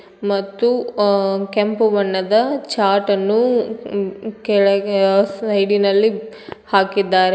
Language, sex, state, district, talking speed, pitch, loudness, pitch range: Kannada, female, Karnataka, Koppal, 100 wpm, 200 Hz, -17 LUFS, 195-220 Hz